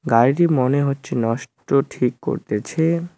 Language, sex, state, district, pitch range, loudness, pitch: Bengali, male, West Bengal, Cooch Behar, 125-160 Hz, -20 LUFS, 135 Hz